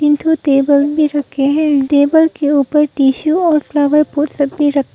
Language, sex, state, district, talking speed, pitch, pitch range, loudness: Hindi, female, Arunachal Pradesh, Papum Pare, 205 wpm, 290 Hz, 280-305 Hz, -13 LUFS